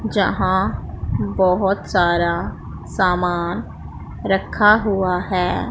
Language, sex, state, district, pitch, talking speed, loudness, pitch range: Hindi, female, Punjab, Pathankot, 185 Hz, 75 wpm, -19 LUFS, 175-195 Hz